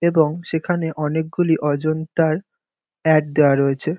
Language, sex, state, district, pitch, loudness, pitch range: Bengali, male, West Bengal, North 24 Parganas, 160 Hz, -19 LUFS, 150-165 Hz